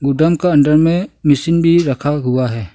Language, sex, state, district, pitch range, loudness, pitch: Hindi, male, Arunachal Pradesh, Longding, 135-165 Hz, -14 LUFS, 150 Hz